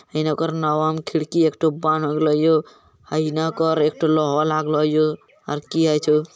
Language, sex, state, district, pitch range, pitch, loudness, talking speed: Maithili, male, Bihar, Bhagalpur, 150-160 Hz, 155 Hz, -20 LUFS, 160 wpm